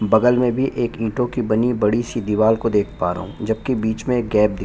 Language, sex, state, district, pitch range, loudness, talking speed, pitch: Hindi, male, Chhattisgarh, Bastar, 105-120 Hz, -20 LUFS, 295 wpm, 110 Hz